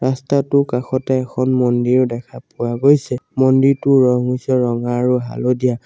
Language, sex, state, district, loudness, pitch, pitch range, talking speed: Assamese, male, Assam, Sonitpur, -16 LUFS, 125 Hz, 125-130 Hz, 135 wpm